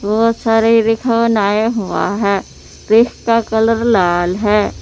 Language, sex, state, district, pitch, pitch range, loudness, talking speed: Hindi, female, Jharkhand, Palamu, 225 Hz, 205-230 Hz, -14 LUFS, 110 wpm